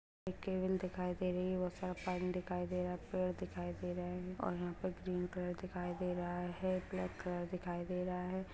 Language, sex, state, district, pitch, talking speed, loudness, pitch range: Hindi, female, Bihar, Madhepura, 180 Hz, 220 wpm, -41 LUFS, 180-185 Hz